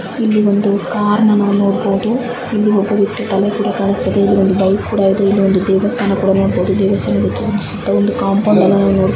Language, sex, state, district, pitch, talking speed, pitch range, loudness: Kannada, female, Karnataka, Bijapur, 200 Hz, 155 wpm, 195-210 Hz, -14 LUFS